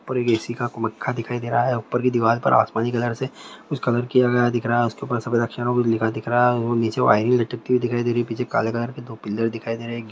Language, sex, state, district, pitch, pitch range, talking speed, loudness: Hindi, male, Chhattisgarh, Bilaspur, 120 Hz, 115-125 Hz, 300 wpm, -22 LUFS